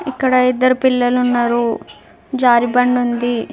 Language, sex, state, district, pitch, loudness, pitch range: Telugu, female, Telangana, Karimnagar, 250 Hz, -15 LUFS, 240-255 Hz